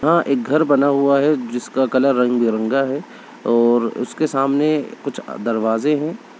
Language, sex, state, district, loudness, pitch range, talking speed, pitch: Hindi, male, Bihar, Begusarai, -18 LUFS, 120-150 Hz, 150 wpm, 140 Hz